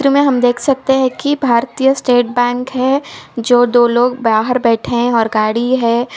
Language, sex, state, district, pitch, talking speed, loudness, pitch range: Hindi, female, Uttar Pradesh, Ghazipur, 245 Hz, 205 wpm, -14 LUFS, 235-265 Hz